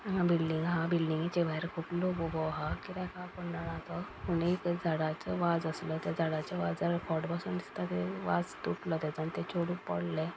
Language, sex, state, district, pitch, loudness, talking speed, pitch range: Konkani, male, Goa, North and South Goa, 165 Hz, -34 LUFS, 190 wpm, 155-175 Hz